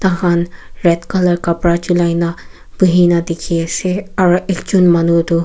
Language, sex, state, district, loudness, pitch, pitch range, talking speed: Nagamese, female, Nagaland, Kohima, -14 LUFS, 175 Hz, 170-185 Hz, 145 wpm